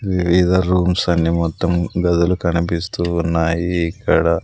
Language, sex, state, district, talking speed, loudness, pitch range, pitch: Telugu, male, Andhra Pradesh, Sri Satya Sai, 95 wpm, -17 LUFS, 85-90 Hz, 85 Hz